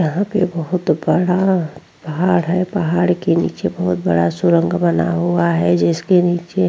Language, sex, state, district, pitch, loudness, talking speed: Hindi, female, Uttar Pradesh, Jyotiba Phule Nagar, 165 Hz, -17 LUFS, 160 wpm